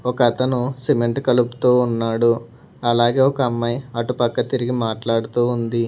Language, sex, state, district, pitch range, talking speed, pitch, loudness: Telugu, male, Telangana, Hyderabad, 115-125 Hz, 135 wpm, 120 Hz, -19 LUFS